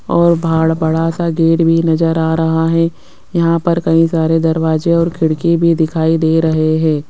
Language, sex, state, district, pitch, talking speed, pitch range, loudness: Hindi, female, Rajasthan, Jaipur, 165 Hz, 185 wpm, 160-165 Hz, -13 LUFS